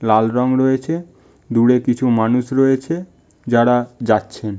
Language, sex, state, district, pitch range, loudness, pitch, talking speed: Bengali, male, West Bengal, Malda, 115-130 Hz, -17 LUFS, 125 Hz, 130 wpm